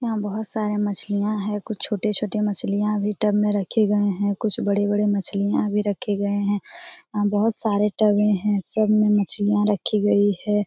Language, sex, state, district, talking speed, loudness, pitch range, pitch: Hindi, female, Bihar, Jamui, 175 wpm, -22 LUFS, 205-215 Hz, 210 Hz